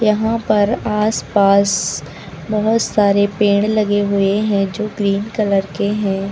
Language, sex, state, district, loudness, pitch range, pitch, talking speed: Hindi, female, Uttar Pradesh, Lucknow, -16 LUFS, 200-215 Hz, 205 Hz, 135 wpm